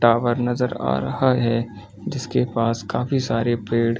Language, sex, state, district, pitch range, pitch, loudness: Hindi, male, Chhattisgarh, Balrampur, 115-120 Hz, 115 Hz, -22 LUFS